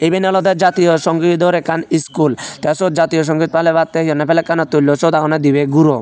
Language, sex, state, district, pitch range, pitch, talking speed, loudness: Chakma, male, Tripura, Unakoti, 155-165 Hz, 165 Hz, 200 wpm, -14 LUFS